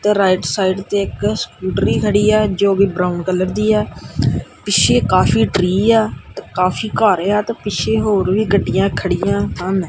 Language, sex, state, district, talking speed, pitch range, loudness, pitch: Punjabi, male, Punjab, Kapurthala, 175 wpm, 185-210 Hz, -16 LUFS, 195 Hz